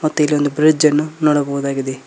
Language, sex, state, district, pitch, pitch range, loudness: Kannada, male, Karnataka, Koppal, 150 Hz, 140-155 Hz, -16 LUFS